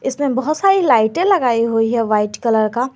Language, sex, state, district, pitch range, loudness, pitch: Hindi, male, Jharkhand, Garhwa, 225-295 Hz, -16 LUFS, 245 Hz